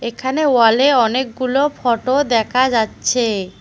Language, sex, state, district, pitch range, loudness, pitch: Bengali, female, West Bengal, Cooch Behar, 230-265 Hz, -16 LUFS, 250 Hz